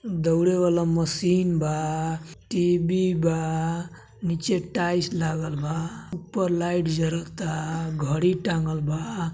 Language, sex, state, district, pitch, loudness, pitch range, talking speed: Bhojpuri, male, Uttar Pradesh, Gorakhpur, 165 Hz, -25 LUFS, 160-175 Hz, 105 wpm